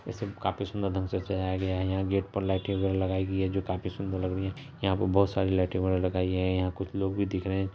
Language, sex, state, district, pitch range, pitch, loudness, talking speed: Hindi, male, Bihar, Purnia, 95-100 Hz, 95 Hz, -30 LUFS, 280 wpm